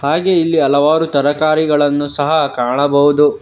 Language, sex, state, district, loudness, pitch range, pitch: Kannada, male, Karnataka, Bangalore, -13 LUFS, 145-155 Hz, 145 Hz